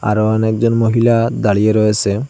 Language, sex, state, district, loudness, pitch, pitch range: Bengali, male, Assam, Hailakandi, -14 LUFS, 110 Hz, 105-115 Hz